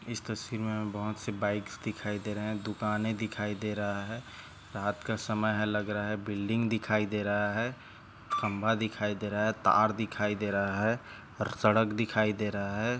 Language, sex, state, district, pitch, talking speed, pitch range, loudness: Hindi, male, Maharashtra, Chandrapur, 105 Hz, 190 wpm, 105-110 Hz, -32 LUFS